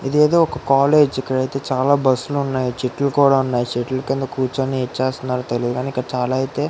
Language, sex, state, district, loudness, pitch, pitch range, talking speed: Telugu, female, Andhra Pradesh, Guntur, -19 LUFS, 130 Hz, 125-140 Hz, 170 wpm